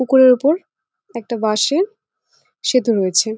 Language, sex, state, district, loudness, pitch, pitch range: Bengali, female, West Bengal, Jalpaiguri, -17 LUFS, 255 Hz, 220-320 Hz